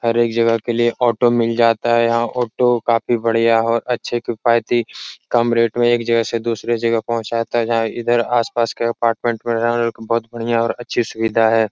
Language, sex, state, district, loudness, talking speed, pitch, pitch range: Hindi, male, Uttar Pradesh, Etah, -18 LUFS, 195 wpm, 115 Hz, 115-120 Hz